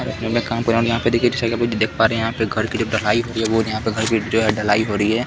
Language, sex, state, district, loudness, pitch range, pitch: Hindi, male, Bihar, Kishanganj, -19 LUFS, 110-115 Hz, 115 Hz